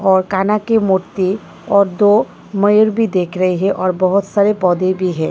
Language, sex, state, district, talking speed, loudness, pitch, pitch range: Hindi, female, Delhi, New Delhi, 190 wpm, -15 LUFS, 195 Hz, 185-205 Hz